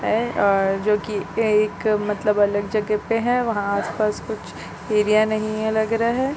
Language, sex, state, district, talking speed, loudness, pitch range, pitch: Hindi, female, Chhattisgarh, Bilaspur, 205 wpm, -21 LUFS, 205-220 Hz, 215 Hz